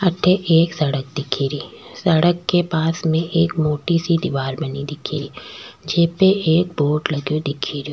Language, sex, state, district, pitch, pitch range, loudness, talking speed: Rajasthani, female, Rajasthan, Churu, 160 Hz, 145-170 Hz, -19 LUFS, 175 wpm